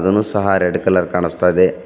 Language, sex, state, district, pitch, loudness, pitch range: Kannada, male, Karnataka, Bidar, 90 Hz, -16 LUFS, 90-100 Hz